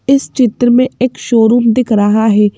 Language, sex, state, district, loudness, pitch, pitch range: Hindi, female, Madhya Pradesh, Bhopal, -11 LUFS, 240 Hz, 220-255 Hz